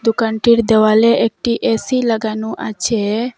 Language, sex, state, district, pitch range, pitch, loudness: Bengali, female, Assam, Hailakandi, 220-235 Hz, 225 Hz, -15 LUFS